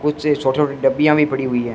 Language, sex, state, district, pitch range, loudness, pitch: Hindi, male, Rajasthan, Bikaner, 135-150 Hz, -17 LUFS, 140 Hz